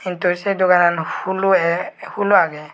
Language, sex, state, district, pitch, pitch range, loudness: Chakma, male, Tripura, West Tripura, 180 Hz, 175-195 Hz, -17 LUFS